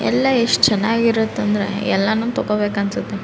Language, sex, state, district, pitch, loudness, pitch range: Kannada, female, Karnataka, Raichur, 215 Hz, -18 LUFS, 205-230 Hz